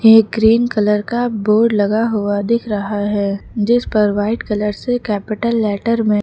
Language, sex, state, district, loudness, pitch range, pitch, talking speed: Hindi, female, Uttar Pradesh, Lucknow, -16 LUFS, 210-230 Hz, 215 Hz, 175 wpm